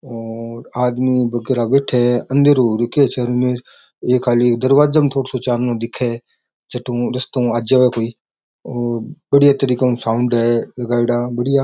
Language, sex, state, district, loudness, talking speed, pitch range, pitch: Rajasthani, male, Rajasthan, Churu, -17 LUFS, 170 wpm, 120-130 Hz, 125 Hz